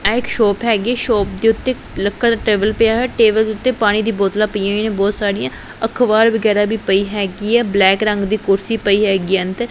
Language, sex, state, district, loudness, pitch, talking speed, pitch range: Punjabi, female, Punjab, Pathankot, -16 LUFS, 215 Hz, 235 wpm, 200-225 Hz